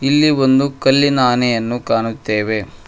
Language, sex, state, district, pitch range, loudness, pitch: Kannada, male, Karnataka, Koppal, 115-135 Hz, -15 LUFS, 125 Hz